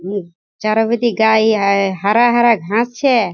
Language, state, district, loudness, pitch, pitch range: Surjapuri, Bihar, Kishanganj, -14 LUFS, 220 Hz, 200-235 Hz